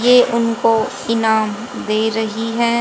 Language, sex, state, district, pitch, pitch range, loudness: Hindi, female, Haryana, Rohtak, 230 Hz, 220-235 Hz, -17 LUFS